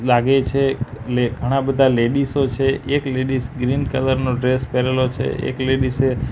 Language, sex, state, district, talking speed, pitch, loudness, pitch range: Gujarati, male, Gujarat, Gandhinagar, 170 wpm, 130 Hz, -19 LUFS, 125-135 Hz